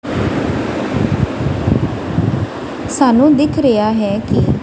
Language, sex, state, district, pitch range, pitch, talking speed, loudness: Punjabi, female, Punjab, Kapurthala, 215-285 Hz, 250 Hz, 65 wpm, -15 LUFS